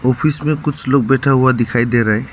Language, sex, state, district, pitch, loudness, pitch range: Hindi, male, Arunachal Pradesh, Lower Dibang Valley, 130 Hz, -15 LUFS, 120-145 Hz